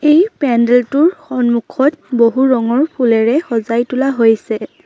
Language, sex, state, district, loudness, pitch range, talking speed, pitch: Assamese, female, Assam, Sonitpur, -14 LUFS, 235-285 Hz, 110 wpm, 255 Hz